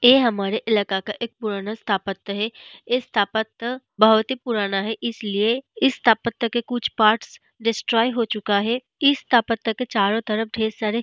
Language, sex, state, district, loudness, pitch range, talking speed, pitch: Hindi, female, Bihar, Vaishali, -22 LUFS, 215-240 Hz, 175 wpm, 225 Hz